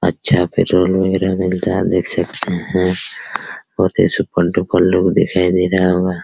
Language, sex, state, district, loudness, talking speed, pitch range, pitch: Hindi, male, Bihar, Araria, -16 LUFS, 185 wpm, 90-95 Hz, 90 Hz